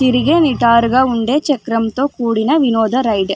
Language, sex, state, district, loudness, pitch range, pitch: Telugu, female, Andhra Pradesh, Anantapur, -14 LUFS, 230-275 Hz, 245 Hz